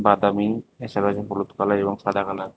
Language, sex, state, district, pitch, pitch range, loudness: Bengali, male, Tripura, West Tripura, 100 Hz, 100-105 Hz, -23 LUFS